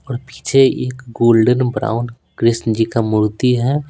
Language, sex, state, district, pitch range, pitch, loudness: Hindi, male, Bihar, Patna, 115-130 Hz, 120 Hz, -16 LUFS